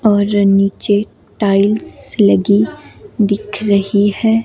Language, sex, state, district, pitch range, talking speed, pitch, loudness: Hindi, female, Himachal Pradesh, Shimla, 200-215 Hz, 95 wpm, 205 Hz, -14 LUFS